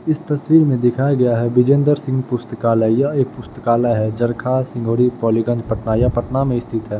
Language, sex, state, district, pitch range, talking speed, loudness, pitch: Hindi, male, Bihar, Jahanabad, 115-135 Hz, 190 wpm, -17 LUFS, 125 Hz